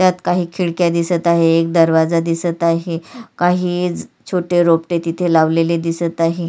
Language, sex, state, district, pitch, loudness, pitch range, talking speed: Marathi, female, Maharashtra, Sindhudurg, 170 Hz, -16 LUFS, 165-175 Hz, 155 wpm